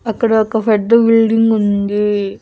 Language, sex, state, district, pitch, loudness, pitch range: Telugu, female, Andhra Pradesh, Annamaya, 220 Hz, -13 LUFS, 205-225 Hz